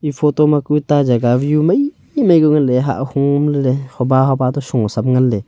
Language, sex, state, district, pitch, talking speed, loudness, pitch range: Wancho, male, Arunachal Pradesh, Longding, 135 Hz, 210 wpm, -15 LUFS, 130-150 Hz